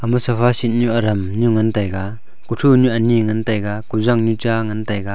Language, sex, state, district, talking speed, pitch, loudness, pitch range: Wancho, male, Arunachal Pradesh, Longding, 210 wpm, 115 Hz, -17 LUFS, 105-120 Hz